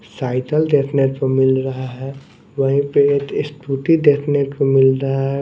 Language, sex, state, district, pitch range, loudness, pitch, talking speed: Hindi, male, Odisha, Nuapada, 135-140 Hz, -17 LUFS, 135 Hz, 165 wpm